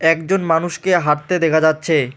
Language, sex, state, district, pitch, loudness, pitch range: Bengali, male, West Bengal, Alipurduar, 165 Hz, -16 LUFS, 155-175 Hz